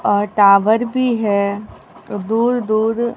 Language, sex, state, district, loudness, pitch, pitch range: Hindi, female, Bihar, Katihar, -16 LUFS, 220 Hz, 205-235 Hz